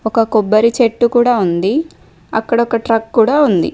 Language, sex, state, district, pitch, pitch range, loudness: Telugu, female, Telangana, Mahabubabad, 225 Hz, 220-240 Hz, -14 LUFS